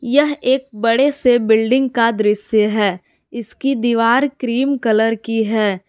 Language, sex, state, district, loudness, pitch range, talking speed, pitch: Hindi, female, Jharkhand, Palamu, -16 LUFS, 220-260 Hz, 145 wpm, 230 Hz